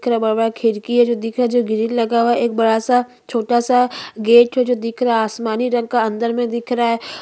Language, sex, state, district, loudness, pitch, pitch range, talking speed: Hindi, female, Chhattisgarh, Bastar, -17 LUFS, 235 Hz, 225-245 Hz, 265 wpm